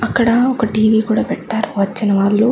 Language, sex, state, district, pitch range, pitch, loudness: Telugu, female, Andhra Pradesh, Chittoor, 205-230 Hz, 220 Hz, -16 LUFS